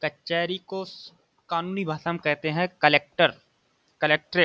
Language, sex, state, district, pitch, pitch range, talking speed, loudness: Hindi, male, Uttar Pradesh, Budaun, 170 Hz, 150-180 Hz, 135 wpm, -25 LUFS